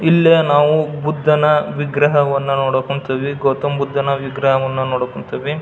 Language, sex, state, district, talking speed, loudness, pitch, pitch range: Kannada, male, Karnataka, Belgaum, 115 wpm, -16 LUFS, 140 Hz, 135-150 Hz